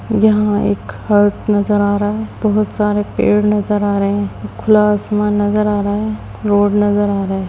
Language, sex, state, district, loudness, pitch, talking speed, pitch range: Hindi, female, Bihar, Gopalganj, -15 LUFS, 205 Hz, 200 wpm, 205-210 Hz